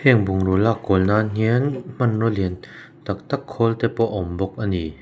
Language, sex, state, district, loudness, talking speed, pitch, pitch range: Mizo, male, Mizoram, Aizawl, -21 LUFS, 205 wpm, 110 Hz, 95-115 Hz